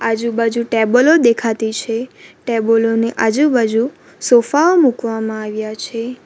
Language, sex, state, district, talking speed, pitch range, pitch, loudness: Gujarati, female, Gujarat, Valsad, 115 wpm, 225-245 Hz, 230 Hz, -15 LUFS